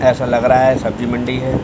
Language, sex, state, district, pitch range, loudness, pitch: Hindi, male, Bihar, Samastipur, 120-130 Hz, -15 LUFS, 125 Hz